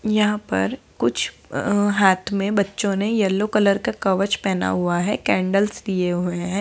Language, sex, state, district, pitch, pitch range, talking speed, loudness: Hindi, female, Bihar, Begusarai, 200 Hz, 185-205 Hz, 170 wpm, -21 LUFS